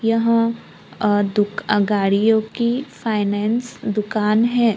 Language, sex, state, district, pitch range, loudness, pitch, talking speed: Hindi, female, Maharashtra, Gondia, 210-230 Hz, -19 LUFS, 220 Hz, 100 wpm